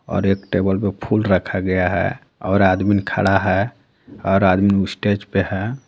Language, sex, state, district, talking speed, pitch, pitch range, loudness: Hindi, female, Jharkhand, Garhwa, 175 wpm, 95 Hz, 95-100 Hz, -18 LUFS